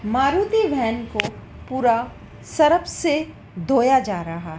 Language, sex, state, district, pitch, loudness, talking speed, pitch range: Hindi, female, Madhya Pradesh, Dhar, 260 Hz, -20 LUFS, 120 wpm, 230-305 Hz